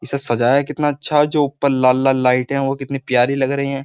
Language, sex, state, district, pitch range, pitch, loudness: Hindi, male, Uttar Pradesh, Jyotiba Phule Nagar, 130-140 Hz, 135 Hz, -17 LUFS